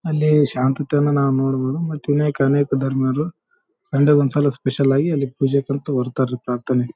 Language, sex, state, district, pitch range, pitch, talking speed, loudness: Kannada, male, Karnataka, Raichur, 130-150 Hz, 140 Hz, 130 wpm, -19 LUFS